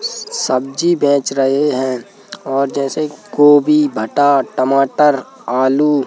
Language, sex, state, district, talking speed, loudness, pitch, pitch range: Hindi, male, Madhya Pradesh, Bhopal, 110 wpm, -15 LUFS, 140 Hz, 135-150 Hz